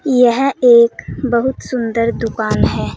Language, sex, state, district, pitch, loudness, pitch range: Hindi, female, Uttar Pradesh, Saharanpur, 245 Hz, -14 LUFS, 235-265 Hz